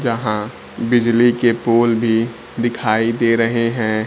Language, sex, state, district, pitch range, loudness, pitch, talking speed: Hindi, male, Bihar, Kaimur, 115-120 Hz, -17 LUFS, 115 Hz, 135 wpm